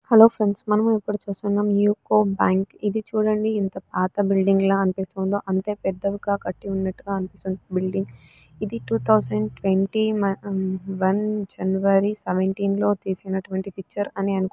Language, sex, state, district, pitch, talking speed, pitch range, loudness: Telugu, female, Karnataka, Belgaum, 195 Hz, 125 wpm, 190-205 Hz, -23 LUFS